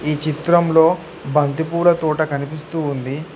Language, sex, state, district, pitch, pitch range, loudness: Telugu, male, Telangana, Hyderabad, 155 Hz, 150-165 Hz, -18 LUFS